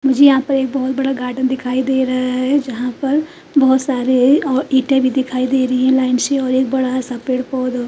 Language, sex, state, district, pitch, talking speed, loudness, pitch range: Hindi, female, Chandigarh, Chandigarh, 260 Hz, 245 wpm, -16 LUFS, 255-270 Hz